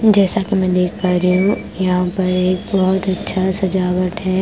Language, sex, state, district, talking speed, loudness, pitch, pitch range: Hindi, female, Punjab, Kapurthala, 190 wpm, -16 LUFS, 185 Hz, 180-190 Hz